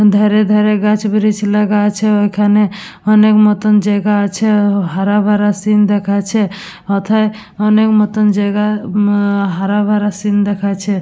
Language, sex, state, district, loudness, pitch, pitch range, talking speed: Bengali, female, West Bengal, Dakshin Dinajpur, -13 LUFS, 210 Hz, 205-210 Hz, 120 wpm